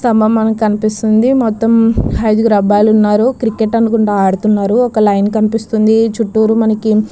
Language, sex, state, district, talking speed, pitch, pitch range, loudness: Telugu, female, Andhra Pradesh, Krishna, 135 wpm, 220 Hz, 215-225 Hz, -12 LUFS